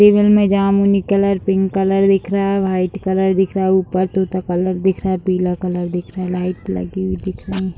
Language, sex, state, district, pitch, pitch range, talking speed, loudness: Hindi, female, Bihar, Sitamarhi, 190 Hz, 185-195 Hz, 230 wpm, -17 LUFS